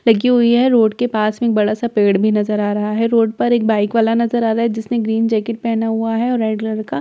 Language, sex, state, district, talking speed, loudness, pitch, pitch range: Hindi, female, Bihar, Katihar, 310 wpm, -16 LUFS, 225 Hz, 215-235 Hz